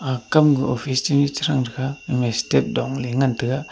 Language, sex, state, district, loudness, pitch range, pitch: Wancho, male, Arunachal Pradesh, Longding, -21 LUFS, 125-140 Hz, 130 Hz